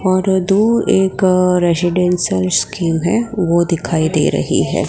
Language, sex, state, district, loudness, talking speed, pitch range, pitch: Hindi, male, Gujarat, Gandhinagar, -15 LUFS, 135 wpm, 170-190 Hz, 180 Hz